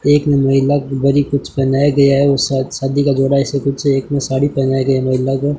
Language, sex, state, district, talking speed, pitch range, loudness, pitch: Hindi, male, Rajasthan, Bikaner, 270 wpm, 135-140 Hz, -15 LUFS, 140 Hz